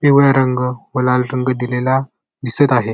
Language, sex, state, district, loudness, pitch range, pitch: Marathi, male, Maharashtra, Sindhudurg, -16 LUFS, 125-135 Hz, 130 Hz